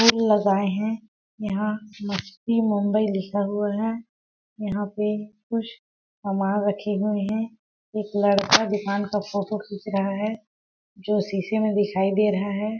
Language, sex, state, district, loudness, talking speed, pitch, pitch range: Hindi, female, Chhattisgarh, Balrampur, -24 LUFS, 140 wpm, 210 Hz, 200-215 Hz